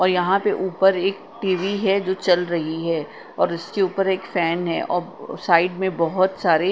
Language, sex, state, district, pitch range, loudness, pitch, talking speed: Hindi, female, Punjab, Kapurthala, 170-195 Hz, -21 LUFS, 185 Hz, 205 wpm